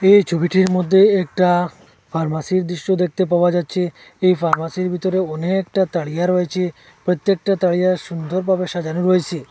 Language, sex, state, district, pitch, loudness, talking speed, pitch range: Bengali, male, Assam, Hailakandi, 180 Hz, -18 LUFS, 135 wpm, 170-185 Hz